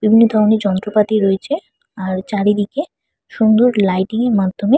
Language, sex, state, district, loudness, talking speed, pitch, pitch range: Bengali, female, West Bengal, Purulia, -16 LUFS, 115 wpm, 210 Hz, 200-230 Hz